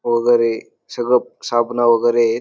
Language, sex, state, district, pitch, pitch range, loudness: Marathi, male, Maharashtra, Dhule, 120 Hz, 115-120 Hz, -17 LUFS